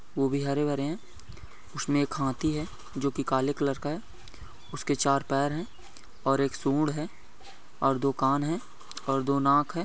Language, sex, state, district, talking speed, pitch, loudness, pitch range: Hindi, male, Goa, North and South Goa, 190 wpm, 140 Hz, -29 LUFS, 135-150 Hz